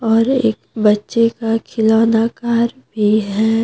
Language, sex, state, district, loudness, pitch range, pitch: Hindi, female, Jharkhand, Deoghar, -16 LUFS, 220-235 Hz, 225 Hz